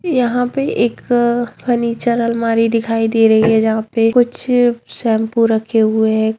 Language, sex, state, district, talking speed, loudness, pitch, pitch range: Hindi, female, Bihar, Darbhanga, 150 wpm, -15 LUFS, 230 Hz, 225-240 Hz